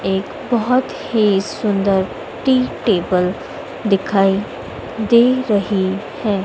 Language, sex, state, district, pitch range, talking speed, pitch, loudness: Hindi, female, Madhya Pradesh, Dhar, 195-235 Hz, 95 wpm, 200 Hz, -17 LUFS